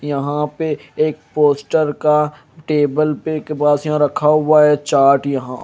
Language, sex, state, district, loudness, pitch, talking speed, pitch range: Hindi, male, Bihar, Kaimur, -16 LUFS, 150 Hz, 160 wpm, 145-155 Hz